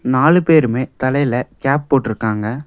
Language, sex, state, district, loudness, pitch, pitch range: Tamil, male, Tamil Nadu, Nilgiris, -16 LUFS, 130 Hz, 120-145 Hz